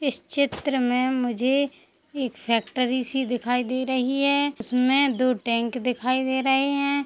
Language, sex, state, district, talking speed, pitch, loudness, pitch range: Hindi, female, Chhattisgarh, Sukma, 160 wpm, 255 Hz, -24 LUFS, 250-275 Hz